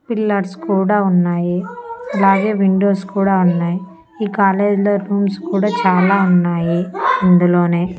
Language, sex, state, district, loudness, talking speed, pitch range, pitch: Telugu, female, Andhra Pradesh, Annamaya, -15 LUFS, 105 wpm, 175-200 Hz, 195 Hz